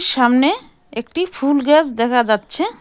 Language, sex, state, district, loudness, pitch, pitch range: Bengali, female, West Bengal, Cooch Behar, -16 LUFS, 280 Hz, 240-325 Hz